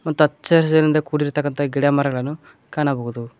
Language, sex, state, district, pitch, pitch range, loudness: Kannada, male, Karnataka, Koppal, 145 Hz, 140-155 Hz, -19 LUFS